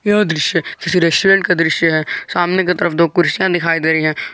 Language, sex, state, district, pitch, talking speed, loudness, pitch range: Hindi, male, Jharkhand, Garhwa, 175 Hz, 220 wpm, -15 LUFS, 165-185 Hz